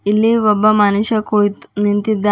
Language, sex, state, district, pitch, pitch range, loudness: Kannada, female, Karnataka, Bidar, 210 Hz, 205-215 Hz, -14 LUFS